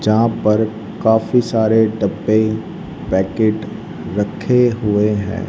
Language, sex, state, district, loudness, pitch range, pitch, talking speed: Hindi, male, Haryana, Rohtak, -17 LUFS, 105-110 Hz, 110 Hz, 100 wpm